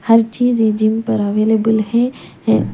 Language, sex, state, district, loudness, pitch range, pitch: Hindi, female, Punjab, Pathankot, -16 LUFS, 215-230 Hz, 225 Hz